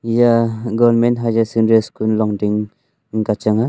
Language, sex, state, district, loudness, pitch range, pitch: Wancho, male, Arunachal Pradesh, Longding, -16 LUFS, 110-115 Hz, 115 Hz